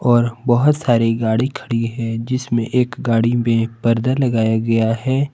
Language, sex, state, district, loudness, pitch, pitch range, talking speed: Hindi, male, Jharkhand, Palamu, -18 LUFS, 120 Hz, 115-125 Hz, 155 wpm